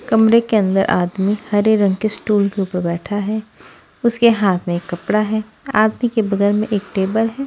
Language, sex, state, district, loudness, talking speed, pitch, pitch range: Hindi, female, Bihar, West Champaran, -17 LUFS, 200 wpm, 210 Hz, 195-220 Hz